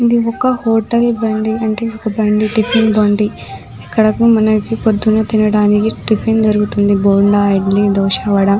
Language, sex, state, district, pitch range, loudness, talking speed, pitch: Telugu, female, Telangana, Nalgonda, 205-225 Hz, -13 LUFS, 120 wpm, 215 Hz